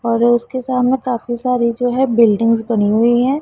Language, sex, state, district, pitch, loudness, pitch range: Hindi, female, Punjab, Pathankot, 240 Hz, -15 LUFS, 230-250 Hz